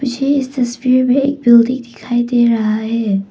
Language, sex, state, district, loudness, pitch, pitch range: Hindi, female, Arunachal Pradesh, Papum Pare, -14 LUFS, 245 Hz, 230-260 Hz